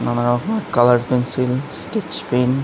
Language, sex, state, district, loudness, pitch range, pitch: Bengali, male, West Bengal, Kolkata, -19 LUFS, 120-145 Hz, 125 Hz